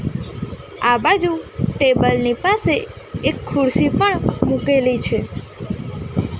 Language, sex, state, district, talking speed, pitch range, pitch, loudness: Gujarati, female, Gujarat, Gandhinagar, 95 wpm, 245-340 Hz, 270 Hz, -18 LUFS